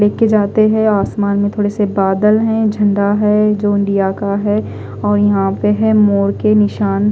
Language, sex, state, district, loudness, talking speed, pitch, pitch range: Hindi, female, Odisha, Khordha, -14 LUFS, 185 wpm, 205 Hz, 200-210 Hz